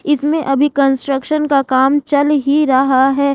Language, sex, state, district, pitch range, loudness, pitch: Hindi, female, Jharkhand, Ranchi, 270-295 Hz, -14 LUFS, 280 Hz